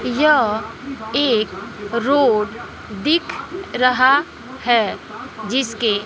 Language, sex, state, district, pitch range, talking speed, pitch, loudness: Hindi, female, Bihar, West Champaran, 220-280 Hz, 70 wpm, 245 Hz, -18 LUFS